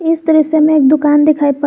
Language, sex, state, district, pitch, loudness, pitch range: Hindi, female, Jharkhand, Garhwa, 305 Hz, -11 LUFS, 295-315 Hz